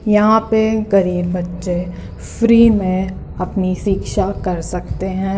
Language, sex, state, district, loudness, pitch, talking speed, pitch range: Hindi, female, Uttar Pradesh, Muzaffarnagar, -17 LUFS, 190 Hz, 125 wpm, 180-215 Hz